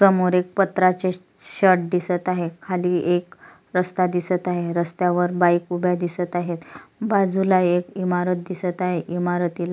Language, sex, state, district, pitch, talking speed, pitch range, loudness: Marathi, female, Maharashtra, Solapur, 180 Hz, 140 wpm, 175-185 Hz, -22 LUFS